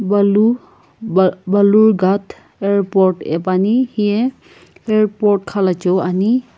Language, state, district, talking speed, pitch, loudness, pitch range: Sumi, Nagaland, Kohima, 90 wpm, 200 Hz, -15 LUFS, 190-215 Hz